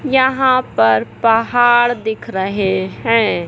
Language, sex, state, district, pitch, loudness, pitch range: Hindi, male, Madhya Pradesh, Katni, 225 Hz, -15 LUFS, 190-245 Hz